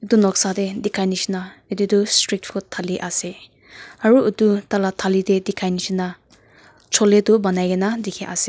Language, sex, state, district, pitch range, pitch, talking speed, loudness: Nagamese, female, Nagaland, Kohima, 185-210 Hz, 195 Hz, 185 wpm, -19 LUFS